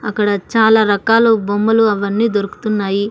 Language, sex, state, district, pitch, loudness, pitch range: Telugu, female, Andhra Pradesh, Annamaya, 210 Hz, -14 LUFS, 205-220 Hz